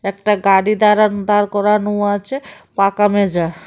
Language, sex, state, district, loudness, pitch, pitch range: Bengali, female, Tripura, West Tripura, -15 LUFS, 205 Hz, 200-210 Hz